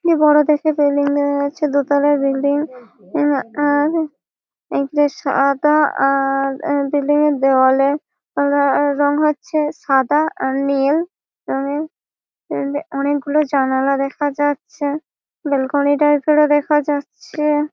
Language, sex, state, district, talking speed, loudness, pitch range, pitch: Bengali, female, West Bengal, Malda, 125 wpm, -17 LUFS, 275-300 Hz, 290 Hz